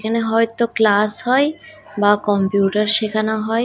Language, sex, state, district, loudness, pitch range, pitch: Bengali, female, Odisha, Khordha, -17 LUFS, 210-230 Hz, 220 Hz